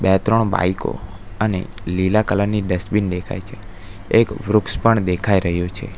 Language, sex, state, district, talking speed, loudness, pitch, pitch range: Gujarati, male, Gujarat, Valsad, 150 wpm, -19 LUFS, 100 Hz, 95-105 Hz